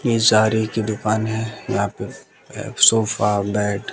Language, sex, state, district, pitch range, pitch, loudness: Hindi, male, Bihar, West Champaran, 105-110 Hz, 110 Hz, -18 LUFS